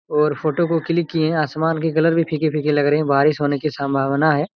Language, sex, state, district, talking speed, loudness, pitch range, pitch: Hindi, male, Chhattisgarh, Raigarh, 250 wpm, -19 LUFS, 145-160 Hz, 155 Hz